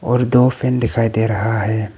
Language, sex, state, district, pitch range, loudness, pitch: Hindi, male, Arunachal Pradesh, Papum Pare, 110-125 Hz, -17 LUFS, 115 Hz